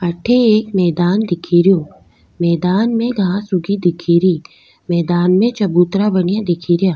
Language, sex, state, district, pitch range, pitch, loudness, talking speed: Rajasthani, female, Rajasthan, Nagaur, 175-200 Hz, 185 Hz, -15 LUFS, 140 wpm